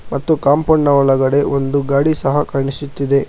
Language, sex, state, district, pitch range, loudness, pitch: Kannada, male, Karnataka, Bangalore, 140-145 Hz, -15 LUFS, 140 Hz